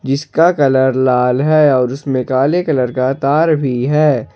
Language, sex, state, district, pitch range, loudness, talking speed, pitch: Hindi, male, Jharkhand, Ranchi, 130-150 Hz, -14 LUFS, 165 wpm, 135 Hz